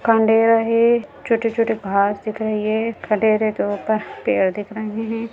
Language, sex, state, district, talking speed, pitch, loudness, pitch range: Hindi, female, Bihar, Lakhisarai, 160 wpm, 220 Hz, -19 LUFS, 215-230 Hz